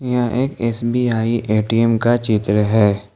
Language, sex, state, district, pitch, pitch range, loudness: Hindi, male, Jharkhand, Ranchi, 115 Hz, 110-120 Hz, -17 LUFS